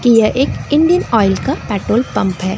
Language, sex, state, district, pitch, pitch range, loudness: Hindi, female, Chandigarh, Chandigarh, 225 Hz, 195-260 Hz, -14 LUFS